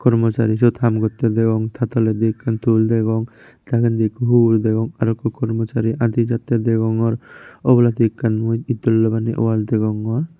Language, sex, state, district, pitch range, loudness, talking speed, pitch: Chakma, male, Tripura, Unakoti, 110-115 Hz, -18 LUFS, 155 wpm, 115 Hz